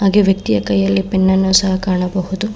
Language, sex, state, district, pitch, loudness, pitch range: Kannada, female, Karnataka, Bangalore, 190 Hz, -15 LUFS, 180-195 Hz